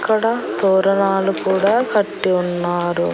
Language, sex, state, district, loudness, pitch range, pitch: Telugu, female, Andhra Pradesh, Annamaya, -17 LUFS, 175-205 Hz, 195 Hz